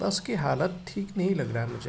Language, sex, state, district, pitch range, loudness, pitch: Hindi, male, Uttar Pradesh, Hamirpur, 120-190 Hz, -29 LUFS, 185 Hz